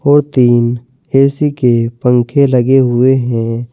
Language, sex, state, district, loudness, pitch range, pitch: Hindi, male, Uttar Pradesh, Saharanpur, -12 LUFS, 120-140 Hz, 125 Hz